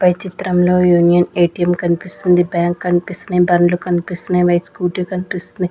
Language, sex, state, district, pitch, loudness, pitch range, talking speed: Telugu, female, Andhra Pradesh, Sri Satya Sai, 180 Hz, -16 LUFS, 175-180 Hz, 125 wpm